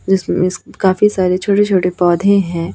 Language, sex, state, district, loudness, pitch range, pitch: Hindi, female, Chhattisgarh, Raipur, -14 LUFS, 180-200 Hz, 190 Hz